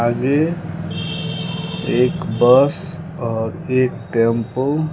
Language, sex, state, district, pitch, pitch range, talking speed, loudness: Hindi, male, Bihar, West Champaran, 150 Hz, 125-165 Hz, 85 wpm, -19 LUFS